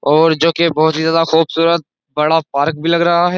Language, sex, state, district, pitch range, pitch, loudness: Hindi, male, Uttar Pradesh, Jyotiba Phule Nagar, 155-170 Hz, 160 Hz, -14 LUFS